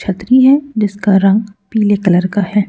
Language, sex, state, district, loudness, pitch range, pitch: Hindi, female, Madhya Pradesh, Bhopal, -12 LUFS, 195-220 Hz, 205 Hz